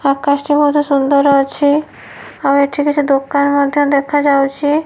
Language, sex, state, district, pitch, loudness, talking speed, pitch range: Odia, female, Odisha, Nuapada, 285 Hz, -13 LUFS, 135 wpm, 280-290 Hz